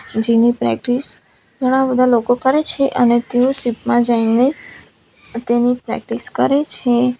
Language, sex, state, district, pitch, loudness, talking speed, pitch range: Gujarati, female, Gujarat, Valsad, 245 Hz, -16 LUFS, 140 wpm, 235-260 Hz